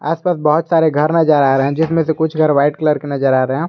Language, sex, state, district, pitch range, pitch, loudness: Hindi, male, Jharkhand, Garhwa, 145-160 Hz, 155 Hz, -14 LUFS